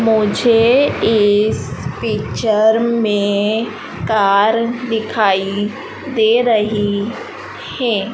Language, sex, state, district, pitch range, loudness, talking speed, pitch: Hindi, female, Madhya Pradesh, Dhar, 205-230 Hz, -15 LUFS, 65 wpm, 220 Hz